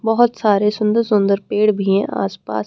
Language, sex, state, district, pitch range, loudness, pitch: Hindi, female, Haryana, Rohtak, 195-220 Hz, -17 LUFS, 205 Hz